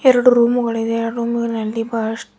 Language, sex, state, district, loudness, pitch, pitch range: Kannada, female, Karnataka, Bidar, -18 LUFS, 230 Hz, 225-240 Hz